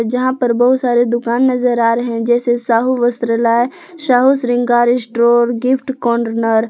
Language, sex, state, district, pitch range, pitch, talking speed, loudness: Hindi, female, Jharkhand, Palamu, 235-250 Hz, 240 Hz, 160 wpm, -14 LUFS